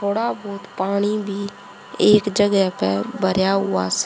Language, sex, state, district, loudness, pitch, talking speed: Hindi, female, Haryana, Charkhi Dadri, -20 LUFS, 195 Hz, 145 wpm